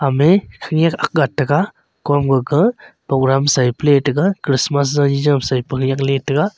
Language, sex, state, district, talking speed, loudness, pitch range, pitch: Wancho, male, Arunachal Pradesh, Longding, 130 wpm, -16 LUFS, 135-155 Hz, 145 Hz